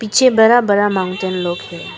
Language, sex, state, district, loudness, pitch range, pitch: Hindi, female, Arunachal Pradesh, Papum Pare, -14 LUFS, 185-220 Hz, 200 Hz